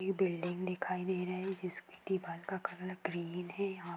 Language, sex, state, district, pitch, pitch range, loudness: Hindi, female, Bihar, Sitamarhi, 185 Hz, 175-190 Hz, -39 LUFS